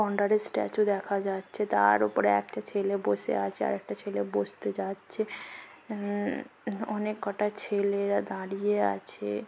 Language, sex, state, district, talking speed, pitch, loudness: Bengali, female, West Bengal, North 24 Parganas, 140 wpm, 200 Hz, -30 LUFS